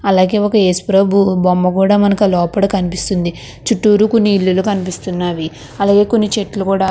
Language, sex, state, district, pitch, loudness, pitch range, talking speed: Telugu, female, Andhra Pradesh, Krishna, 195 Hz, -14 LUFS, 180-205 Hz, 145 wpm